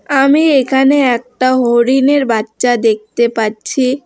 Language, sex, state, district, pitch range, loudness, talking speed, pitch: Bengali, female, West Bengal, Alipurduar, 235-270 Hz, -12 LUFS, 105 wpm, 255 Hz